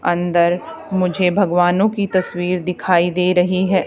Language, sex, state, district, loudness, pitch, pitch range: Hindi, female, Haryana, Charkhi Dadri, -17 LUFS, 180 Hz, 175-185 Hz